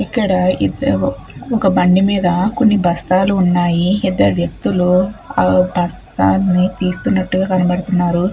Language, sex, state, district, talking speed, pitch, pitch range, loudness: Telugu, female, Andhra Pradesh, Chittoor, 110 wpm, 185 Hz, 175-190 Hz, -15 LUFS